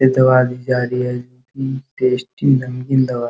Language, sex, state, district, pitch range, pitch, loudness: Hindi, male, Bihar, Araria, 125-130 Hz, 125 Hz, -17 LUFS